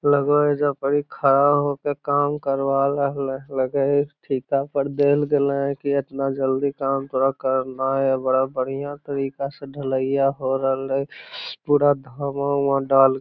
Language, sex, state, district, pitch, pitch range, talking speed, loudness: Magahi, male, Bihar, Lakhisarai, 140 Hz, 135-145 Hz, 175 wpm, -22 LUFS